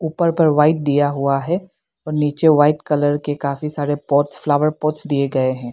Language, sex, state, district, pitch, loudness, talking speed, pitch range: Hindi, female, Arunachal Pradesh, Lower Dibang Valley, 150 Hz, -18 LUFS, 200 wpm, 145-155 Hz